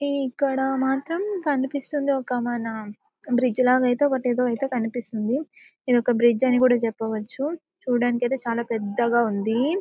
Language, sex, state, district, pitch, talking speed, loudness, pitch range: Telugu, female, Telangana, Karimnagar, 250 Hz, 145 wpm, -23 LUFS, 235-275 Hz